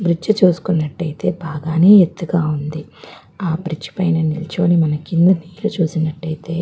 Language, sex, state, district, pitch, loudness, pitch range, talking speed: Telugu, female, Andhra Pradesh, Guntur, 165 Hz, -17 LUFS, 160-175 Hz, 135 wpm